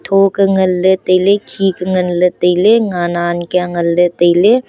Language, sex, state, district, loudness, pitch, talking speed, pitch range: Wancho, female, Arunachal Pradesh, Longding, -13 LUFS, 180 Hz, 190 wpm, 175-195 Hz